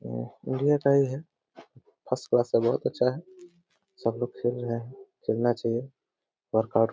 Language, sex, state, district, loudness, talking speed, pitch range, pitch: Hindi, male, Uttar Pradesh, Deoria, -28 LUFS, 165 wpm, 115-170 Hz, 130 Hz